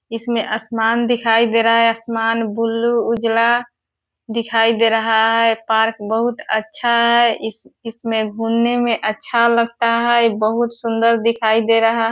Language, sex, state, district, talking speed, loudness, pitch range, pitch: Hindi, female, Bihar, Purnia, 145 wpm, -16 LUFS, 225-235 Hz, 230 Hz